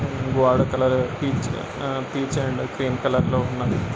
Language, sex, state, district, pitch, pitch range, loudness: Telugu, male, Andhra Pradesh, Srikakulam, 130 Hz, 125-135 Hz, -23 LUFS